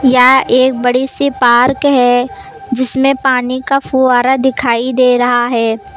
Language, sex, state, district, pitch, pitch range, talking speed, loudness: Hindi, female, Uttar Pradesh, Lucknow, 255 Hz, 245-270 Hz, 140 wpm, -11 LUFS